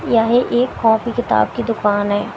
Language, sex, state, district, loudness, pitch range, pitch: Hindi, female, Haryana, Jhajjar, -17 LUFS, 205-240 Hz, 230 Hz